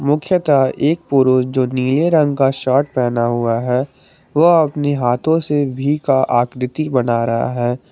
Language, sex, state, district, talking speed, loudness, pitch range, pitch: Hindi, male, Jharkhand, Garhwa, 160 wpm, -16 LUFS, 125-150 Hz, 135 Hz